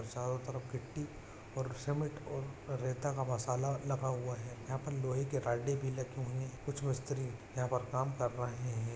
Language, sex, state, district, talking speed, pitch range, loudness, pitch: Hindi, male, Chhattisgarh, Raigarh, 195 wpm, 125-135 Hz, -39 LUFS, 130 Hz